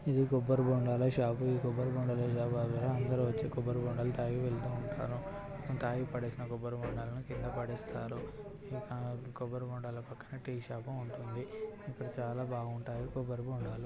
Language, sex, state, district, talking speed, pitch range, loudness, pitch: Telugu, male, Telangana, Karimnagar, 115 wpm, 120-130 Hz, -37 LUFS, 125 Hz